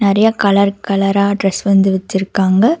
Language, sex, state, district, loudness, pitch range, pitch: Tamil, female, Karnataka, Bangalore, -14 LUFS, 195-200 Hz, 200 Hz